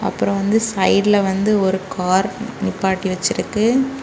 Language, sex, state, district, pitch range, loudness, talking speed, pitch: Tamil, female, Tamil Nadu, Kanyakumari, 190-215 Hz, -18 LUFS, 120 wpm, 195 Hz